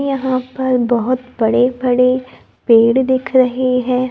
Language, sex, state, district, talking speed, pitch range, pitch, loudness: Hindi, female, Maharashtra, Gondia, 130 wpm, 245-255 Hz, 255 Hz, -15 LUFS